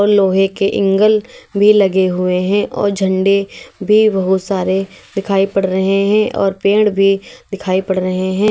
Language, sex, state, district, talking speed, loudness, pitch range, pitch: Hindi, female, Uttar Pradesh, Lalitpur, 160 wpm, -14 LUFS, 190-205 Hz, 195 Hz